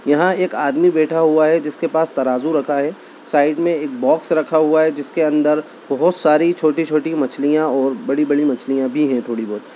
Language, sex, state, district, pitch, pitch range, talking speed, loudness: Hindi, female, Bihar, Bhagalpur, 155 Hz, 145-160 Hz, 190 wpm, -17 LUFS